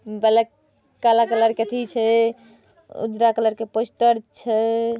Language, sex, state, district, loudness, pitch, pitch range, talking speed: Maithili, female, Bihar, Saharsa, -20 LUFS, 225 Hz, 225-230 Hz, 130 wpm